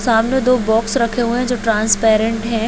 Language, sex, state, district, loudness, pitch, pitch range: Hindi, female, Chhattisgarh, Bilaspur, -16 LUFS, 230 Hz, 225-245 Hz